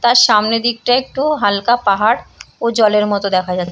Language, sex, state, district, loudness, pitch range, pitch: Bengali, female, West Bengal, Purulia, -14 LUFS, 205-240 Hz, 225 Hz